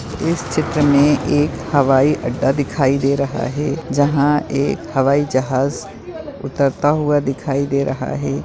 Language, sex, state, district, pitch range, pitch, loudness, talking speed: Hindi, female, Maharashtra, Nagpur, 135-150 Hz, 140 Hz, -17 LUFS, 140 wpm